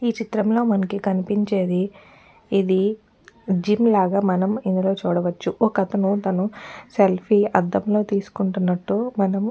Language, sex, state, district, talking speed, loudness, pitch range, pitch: Telugu, female, Telangana, Nalgonda, 95 wpm, -21 LUFS, 190-210 Hz, 200 Hz